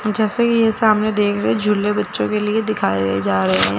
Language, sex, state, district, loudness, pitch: Hindi, female, Chandigarh, Chandigarh, -17 LUFS, 210 Hz